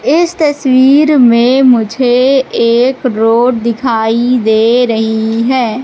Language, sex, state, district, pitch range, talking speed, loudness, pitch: Hindi, female, Madhya Pradesh, Katni, 230-260 Hz, 100 wpm, -10 LUFS, 245 Hz